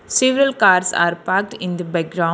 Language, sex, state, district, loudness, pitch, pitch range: English, female, Telangana, Hyderabad, -17 LUFS, 180 Hz, 170-225 Hz